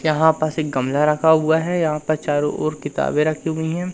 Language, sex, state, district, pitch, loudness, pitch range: Hindi, male, Madhya Pradesh, Umaria, 155 Hz, -19 LUFS, 150-160 Hz